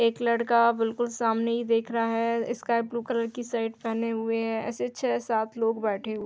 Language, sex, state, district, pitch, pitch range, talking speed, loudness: Hindi, female, Uttar Pradesh, Hamirpur, 230 Hz, 225-235 Hz, 210 wpm, -27 LUFS